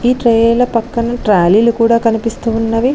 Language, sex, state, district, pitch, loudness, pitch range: Telugu, female, Telangana, Mahabubabad, 230 Hz, -13 LUFS, 225-240 Hz